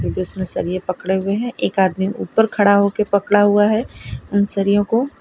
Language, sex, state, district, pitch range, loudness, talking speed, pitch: Hindi, female, Gujarat, Valsad, 190-210 Hz, -18 LUFS, 160 wpm, 200 Hz